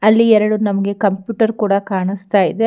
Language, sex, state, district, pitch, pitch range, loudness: Kannada, female, Karnataka, Bangalore, 205 Hz, 195-220 Hz, -16 LUFS